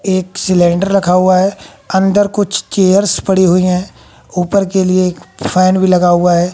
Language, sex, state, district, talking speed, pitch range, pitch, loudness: Hindi, female, Haryana, Jhajjar, 185 wpm, 180-195 Hz, 185 Hz, -12 LUFS